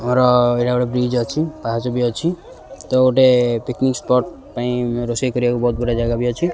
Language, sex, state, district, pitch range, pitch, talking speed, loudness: Odia, male, Odisha, Khordha, 120-125 Hz, 125 Hz, 190 wpm, -18 LUFS